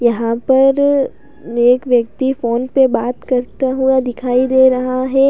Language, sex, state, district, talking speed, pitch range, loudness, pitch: Hindi, female, Uttar Pradesh, Lalitpur, 145 wpm, 245-265 Hz, -15 LUFS, 255 Hz